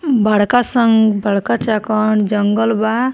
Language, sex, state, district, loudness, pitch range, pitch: Bhojpuri, female, Bihar, Muzaffarpur, -15 LUFS, 210-235 Hz, 220 Hz